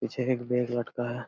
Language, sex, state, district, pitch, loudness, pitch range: Hindi, male, Bihar, Lakhisarai, 120 Hz, -30 LUFS, 120-125 Hz